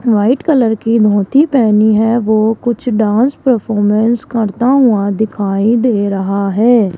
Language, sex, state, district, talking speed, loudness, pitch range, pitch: Hindi, female, Rajasthan, Jaipur, 140 wpm, -12 LUFS, 210-240 Hz, 220 Hz